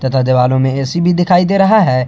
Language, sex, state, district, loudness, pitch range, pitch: Hindi, male, Jharkhand, Palamu, -12 LUFS, 130-180 Hz, 135 Hz